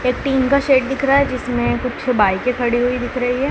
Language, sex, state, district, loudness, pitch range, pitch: Hindi, female, Madhya Pradesh, Dhar, -17 LUFS, 245-270 Hz, 250 Hz